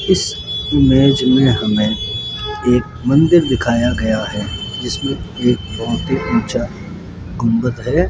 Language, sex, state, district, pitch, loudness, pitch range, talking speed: Hindi, male, Rajasthan, Jaipur, 120 Hz, -16 LUFS, 105-130 Hz, 120 wpm